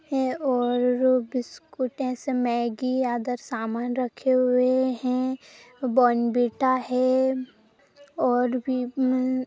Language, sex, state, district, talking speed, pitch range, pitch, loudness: Hindi, female, Bihar, Jamui, 100 wpm, 245-260 Hz, 255 Hz, -24 LUFS